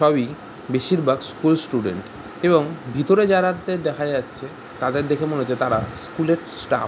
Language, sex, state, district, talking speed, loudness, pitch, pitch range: Bengali, male, West Bengal, Jhargram, 165 wpm, -21 LUFS, 150 Hz, 130-170 Hz